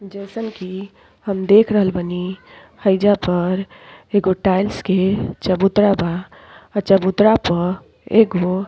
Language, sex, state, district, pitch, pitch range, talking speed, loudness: Bhojpuri, female, Uttar Pradesh, Deoria, 195 Hz, 185-205 Hz, 125 wpm, -18 LUFS